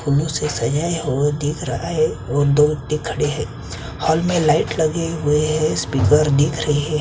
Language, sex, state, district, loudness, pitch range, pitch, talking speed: Hindi, male, Chhattisgarh, Kabirdham, -19 LUFS, 145-155 Hz, 150 Hz, 195 wpm